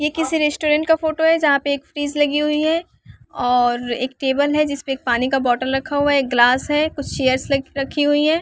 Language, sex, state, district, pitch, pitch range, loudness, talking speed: Hindi, female, Bihar, West Champaran, 285 Hz, 265-300 Hz, -18 LUFS, 250 wpm